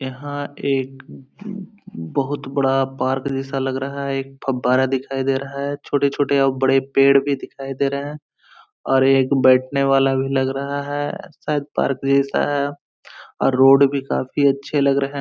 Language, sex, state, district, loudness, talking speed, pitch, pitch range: Hindi, male, Bihar, Araria, -20 LUFS, 180 wpm, 135 Hz, 135-140 Hz